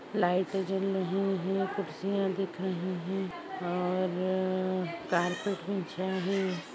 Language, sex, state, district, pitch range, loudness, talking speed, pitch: Hindi, female, Maharashtra, Aurangabad, 180-195 Hz, -32 LUFS, 105 wpm, 185 Hz